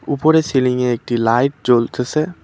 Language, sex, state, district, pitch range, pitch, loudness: Bengali, male, West Bengal, Cooch Behar, 120-150 Hz, 125 Hz, -16 LUFS